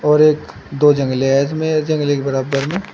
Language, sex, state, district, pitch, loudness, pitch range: Hindi, male, Uttar Pradesh, Shamli, 145 Hz, -16 LUFS, 135-155 Hz